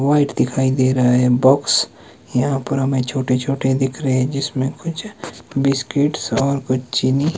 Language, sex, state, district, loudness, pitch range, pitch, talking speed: Hindi, male, Himachal Pradesh, Shimla, -18 LUFS, 130-140 Hz, 135 Hz, 165 wpm